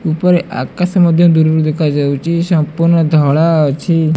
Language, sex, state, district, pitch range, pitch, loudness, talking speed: Odia, female, Odisha, Malkangiri, 155-170 Hz, 160 Hz, -12 LUFS, 115 wpm